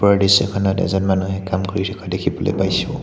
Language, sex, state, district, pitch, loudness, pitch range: Assamese, male, Assam, Hailakandi, 95 Hz, -19 LUFS, 95-100 Hz